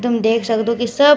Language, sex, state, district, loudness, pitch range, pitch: Garhwali, male, Uttarakhand, Tehri Garhwal, -17 LUFS, 225-245 Hz, 235 Hz